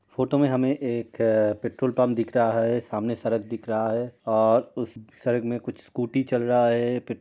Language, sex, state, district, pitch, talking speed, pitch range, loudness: Hindi, male, Uttar Pradesh, Budaun, 120 Hz, 210 wpm, 115-125 Hz, -25 LUFS